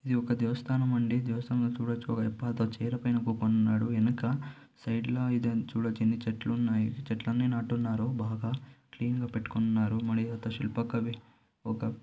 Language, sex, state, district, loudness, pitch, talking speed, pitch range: Telugu, male, Andhra Pradesh, Anantapur, -31 LUFS, 115 Hz, 145 wpm, 115-120 Hz